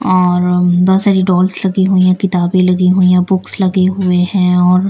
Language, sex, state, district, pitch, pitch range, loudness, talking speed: Hindi, female, Bihar, Patna, 185 Hz, 180-190 Hz, -12 LUFS, 195 wpm